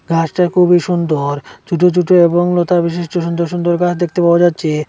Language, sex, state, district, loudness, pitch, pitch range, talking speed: Bengali, male, Assam, Hailakandi, -14 LUFS, 175 Hz, 170-175 Hz, 170 wpm